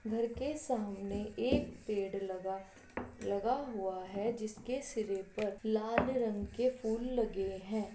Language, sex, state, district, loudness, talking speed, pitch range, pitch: Hindi, female, Uttar Pradesh, Jalaun, -37 LUFS, 135 wpm, 200-235 Hz, 215 Hz